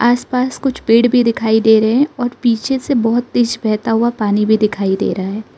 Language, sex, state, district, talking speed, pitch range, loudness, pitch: Hindi, female, Arunachal Pradesh, Lower Dibang Valley, 235 wpm, 220-245 Hz, -15 LUFS, 230 Hz